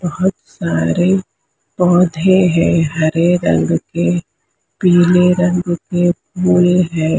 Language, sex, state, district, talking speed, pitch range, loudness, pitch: Hindi, female, Maharashtra, Mumbai Suburban, 100 wpm, 165-180 Hz, -14 LUFS, 175 Hz